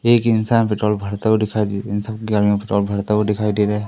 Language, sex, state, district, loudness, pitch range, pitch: Hindi, male, Madhya Pradesh, Katni, -19 LUFS, 105-110 Hz, 105 Hz